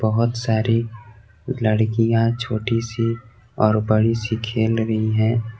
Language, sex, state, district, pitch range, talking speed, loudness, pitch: Hindi, male, Jharkhand, Garhwa, 110-115 Hz, 120 wpm, -20 LUFS, 110 Hz